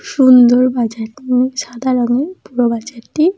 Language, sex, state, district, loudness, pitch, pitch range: Bengali, female, West Bengal, Kolkata, -14 LUFS, 250 Hz, 240-260 Hz